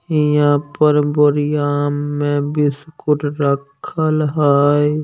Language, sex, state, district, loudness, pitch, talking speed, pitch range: Maithili, male, Bihar, Samastipur, -16 LUFS, 145 Hz, 85 wpm, 145-150 Hz